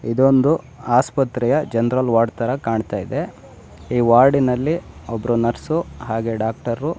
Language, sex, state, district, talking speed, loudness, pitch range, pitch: Kannada, male, Karnataka, Shimoga, 110 wpm, -19 LUFS, 115-135 Hz, 120 Hz